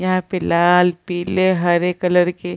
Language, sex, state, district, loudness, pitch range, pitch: Hindi, female, Bihar, Gaya, -17 LUFS, 175-185 Hz, 180 Hz